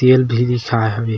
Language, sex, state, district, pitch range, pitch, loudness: Chhattisgarhi, male, Chhattisgarh, Sarguja, 115-125 Hz, 120 Hz, -16 LUFS